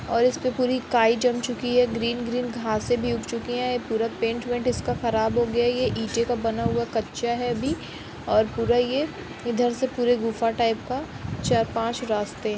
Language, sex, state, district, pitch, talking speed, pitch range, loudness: Hindi, female, Uttar Pradesh, Jalaun, 240 Hz, 200 wpm, 230-245 Hz, -25 LUFS